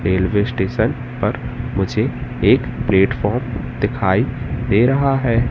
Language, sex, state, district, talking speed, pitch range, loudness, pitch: Hindi, male, Madhya Pradesh, Katni, 110 wpm, 100-125 Hz, -18 LUFS, 120 Hz